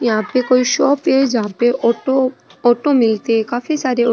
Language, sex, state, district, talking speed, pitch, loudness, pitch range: Rajasthani, female, Rajasthan, Nagaur, 220 wpm, 245 Hz, -16 LUFS, 235-265 Hz